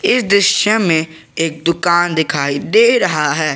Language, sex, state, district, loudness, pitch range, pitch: Hindi, male, Jharkhand, Garhwa, -14 LUFS, 155-200 Hz, 170 Hz